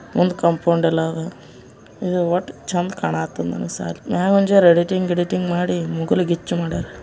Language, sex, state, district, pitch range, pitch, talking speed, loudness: Kannada, male, Karnataka, Bijapur, 155-180 Hz, 170 Hz, 145 wpm, -20 LUFS